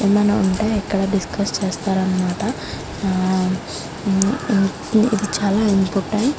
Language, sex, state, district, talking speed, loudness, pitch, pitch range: Telugu, female, Andhra Pradesh, Guntur, 105 wpm, -20 LUFS, 200 Hz, 190-205 Hz